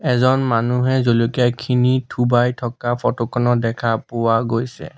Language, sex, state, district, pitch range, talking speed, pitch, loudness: Assamese, male, Assam, Sonitpur, 115-125 Hz, 130 wpm, 120 Hz, -18 LUFS